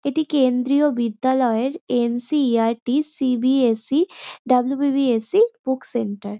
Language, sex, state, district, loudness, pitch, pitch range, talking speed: Bengali, female, West Bengal, North 24 Parganas, -20 LUFS, 260 Hz, 240-280 Hz, 190 wpm